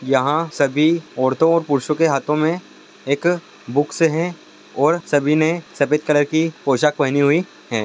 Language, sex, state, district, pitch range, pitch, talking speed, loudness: Hindi, male, Rajasthan, Churu, 140-165 Hz, 150 Hz, 160 wpm, -18 LUFS